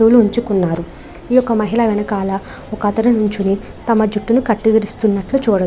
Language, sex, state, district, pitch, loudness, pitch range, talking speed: Telugu, female, Andhra Pradesh, Krishna, 215 Hz, -16 LUFS, 200-230 Hz, 105 wpm